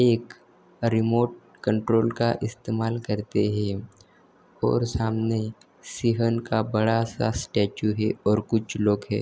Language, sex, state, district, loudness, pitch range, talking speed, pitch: Hindi, male, Maharashtra, Dhule, -25 LUFS, 105-115 Hz, 125 wpm, 110 Hz